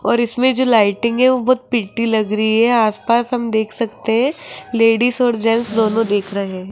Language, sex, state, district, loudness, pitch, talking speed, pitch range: Hindi, female, Rajasthan, Jaipur, -16 LUFS, 230 Hz, 215 wpm, 220-245 Hz